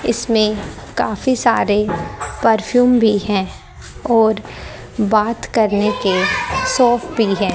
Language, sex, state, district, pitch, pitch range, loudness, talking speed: Hindi, female, Haryana, Rohtak, 215 Hz, 205-240 Hz, -16 LUFS, 105 wpm